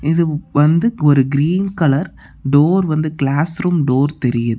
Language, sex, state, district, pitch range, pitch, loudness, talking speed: Tamil, male, Tamil Nadu, Namakkal, 140-170 Hz, 150 Hz, -16 LUFS, 145 wpm